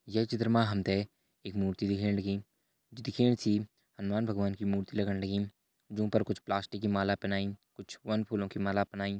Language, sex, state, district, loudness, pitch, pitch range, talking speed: Hindi, male, Uttarakhand, Uttarkashi, -33 LUFS, 100 Hz, 100-105 Hz, 200 wpm